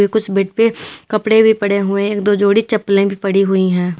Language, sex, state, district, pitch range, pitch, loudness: Hindi, female, Uttar Pradesh, Lalitpur, 195-215 Hz, 200 Hz, -14 LUFS